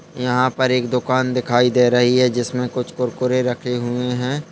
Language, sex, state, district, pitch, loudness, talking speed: Hindi, male, Jharkhand, Sahebganj, 125 Hz, -19 LUFS, 185 wpm